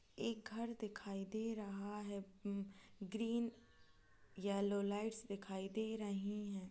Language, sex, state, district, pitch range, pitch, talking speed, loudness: Hindi, female, Chhattisgarh, Kabirdham, 200-220 Hz, 205 Hz, 115 wpm, -45 LUFS